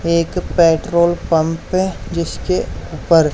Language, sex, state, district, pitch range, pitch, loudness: Hindi, male, Haryana, Charkhi Dadri, 165-175 Hz, 170 Hz, -17 LUFS